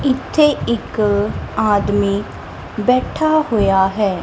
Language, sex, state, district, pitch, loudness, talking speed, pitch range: Punjabi, female, Punjab, Kapurthala, 210 Hz, -17 LUFS, 85 wpm, 205-255 Hz